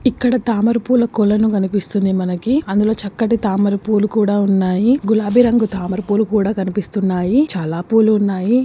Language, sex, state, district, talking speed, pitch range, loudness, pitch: Telugu, female, Telangana, Karimnagar, 140 wpm, 195-230 Hz, -16 LUFS, 210 Hz